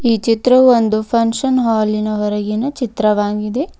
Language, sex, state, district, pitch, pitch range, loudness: Kannada, female, Karnataka, Bidar, 225 Hz, 215-250 Hz, -15 LUFS